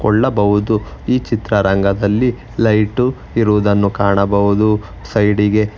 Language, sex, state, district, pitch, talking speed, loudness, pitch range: Kannada, male, Karnataka, Bangalore, 105 Hz, 85 wpm, -15 LUFS, 100-115 Hz